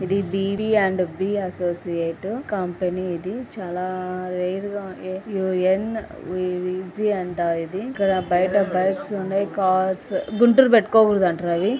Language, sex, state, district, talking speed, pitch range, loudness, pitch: Telugu, female, Andhra Pradesh, Anantapur, 115 wpm, 180-200 Hz, -22 LUFS, 190 Hz